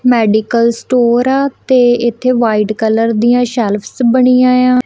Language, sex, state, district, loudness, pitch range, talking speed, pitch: Punjabi, female, Punjab, Kapurthala, -12 LUFS, 230-250 Hz, 135 wpm, 240 Hz